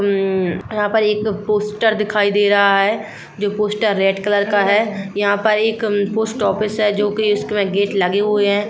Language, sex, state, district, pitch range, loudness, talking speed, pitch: Hindi, female, Chhattisgarh, Rajnandgaon, 200-210 Hz, -17 LUFS, 195 wpm, 205 Hz